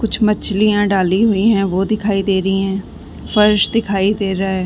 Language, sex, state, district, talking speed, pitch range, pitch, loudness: Hindi, female, Chhattisgarh, Bilaspur, 195 wpm, 195-210 Hz, 200 Hz, -16 LUFS